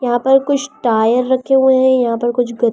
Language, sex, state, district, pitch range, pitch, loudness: Hindi, female, Delhi, New Delhi, 240-265 Hz, 250 Hz, -14 LUFS